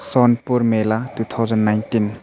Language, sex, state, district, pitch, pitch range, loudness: Hindi, male, Arunachal Pradesh, Papum Pare, 115 Hz, 110-120 Hz, -19 LUFS